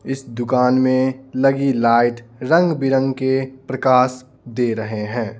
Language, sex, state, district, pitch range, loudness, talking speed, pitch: Hindi, male, Bihar, Patna, 120-135 Hz, -18 LUFS, 135 wpm, 130 Hz